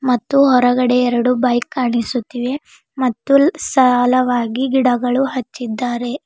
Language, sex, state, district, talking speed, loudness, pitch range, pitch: Kannada, female, Karnataka, Bidar, 85 wpm, -16 LUFS, 245-265 Hz, 250 Hz